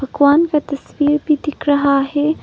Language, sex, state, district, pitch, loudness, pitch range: Hindi, female, Arunachal Pradesh, Papum Pare, 290 Hz, -16 LUFS, 285-300 Hz